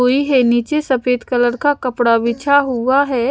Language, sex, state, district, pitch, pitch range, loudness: Hindi, female, Punjab, Pathankot, 255 Hz, 240-280 Hz, -15 LUFS